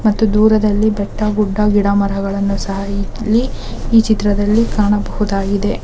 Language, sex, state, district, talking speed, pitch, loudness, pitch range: Kannada, female, Karnataka, Mysore, 115 wpm, 210 Hz, -15 LUFS, 200-215 Hz